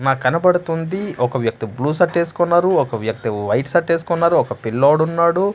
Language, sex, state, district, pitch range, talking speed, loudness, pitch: Telugu, male, Andhra Pradesh, Manyam, 125-175 Hz, 160 wpm, -18 LUFS, 165 Hz